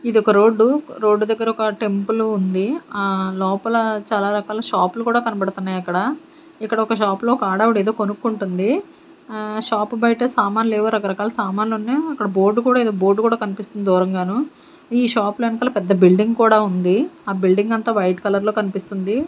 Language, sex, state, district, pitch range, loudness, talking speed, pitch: Telugu, female, Andhra Pradesh, Sri Satya Sai, 200-235 Hz, -19 LUFS, 170 wpm, 215 Hz